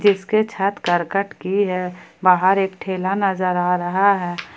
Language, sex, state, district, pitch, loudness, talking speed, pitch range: Hindi, female, Jharkhand, Ranchi, 190 Hz, -19 LUFS, 155 wpm, 180-200 Hz